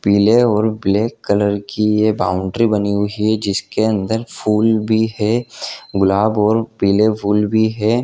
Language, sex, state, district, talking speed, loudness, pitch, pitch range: Hindi, male, Jharkhand, Jamtara, 155 wpm, -16 LUFS, 105 Hz, 100-110 Hz